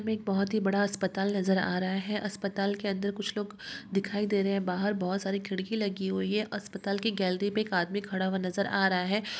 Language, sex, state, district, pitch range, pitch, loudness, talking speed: Hindi, female, Andhra Pradesh, Guntur, 190-205 Hz, 200 Hz, -30 LUFS, 235 wpm